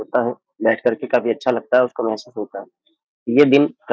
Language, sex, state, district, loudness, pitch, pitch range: Hindi, male, Uttar Pradesh, Jyotiba Phule Nagar, -19 LUFS, 125 Hz, 110-145 Hz